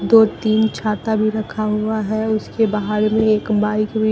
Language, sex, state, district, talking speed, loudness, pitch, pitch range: Hindi, female, Bihar, Katihar, 190 wpm, -18 LUFS, 215 Hz, 215-220 Hz